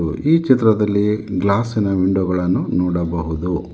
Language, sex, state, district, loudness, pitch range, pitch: Kannada, male, Karnataka, Bangalore, -18 LUFS, 90-105 Hz, 95 Hz